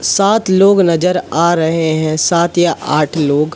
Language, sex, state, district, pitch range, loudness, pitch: Hindi, male, Madhya Pradesh, Katni, 155-180 Hz, -13 LUFS, 170 Hz